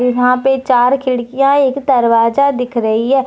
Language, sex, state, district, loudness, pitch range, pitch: Hindi, female, Jharkhand, Deoghar, -13 LUFS, 245-270 Hz, 255 Hz